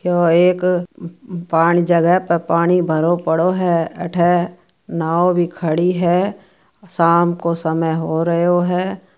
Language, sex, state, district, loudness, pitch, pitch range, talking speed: Marwari, female, Rajasthan, Churu, -16 LUFS, 175 Hz, 170-180 Hz, 130 wpm